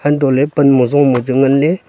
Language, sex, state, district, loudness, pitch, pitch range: Wancho, male, Arunachal Pradesh, Longding, -12 LUFS, 140 Hz, 135-145 Hz